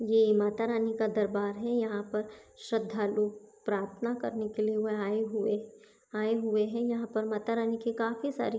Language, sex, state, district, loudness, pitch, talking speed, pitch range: Hindi, female, Maharashtra, Chandrapur, -31 LUFS, 215 Hz, 180 wpm, 210-230 Hz